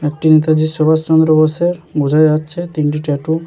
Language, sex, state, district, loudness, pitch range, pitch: Bengali, male, West Bengal, Jalpaiguri, -14 LUFS, 155-160 Hz, 155 Hz